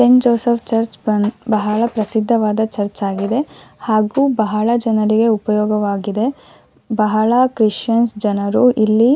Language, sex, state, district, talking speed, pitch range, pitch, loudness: Kannada, female, Karnataka, Shimoga, 100 wpm, 210-235 Hz, 220 Hz, -16 LUFS